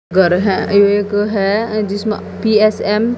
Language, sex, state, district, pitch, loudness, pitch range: Hindi, female, Haryana, Jhajjar, 205 Hz, -15 LUFS, 200-215 Hz